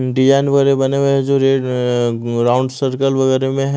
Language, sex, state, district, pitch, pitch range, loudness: Hindi, male, Odisha, Malkangiri, 135 Hz, 130-135 Hz, -15 LUFS